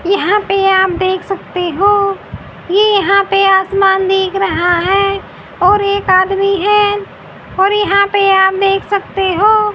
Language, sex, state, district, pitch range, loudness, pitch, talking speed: Hindi, female, Haryana, Rohtak, 380-400 Hz, -12 LUFS, 390 Hz, 150 wpm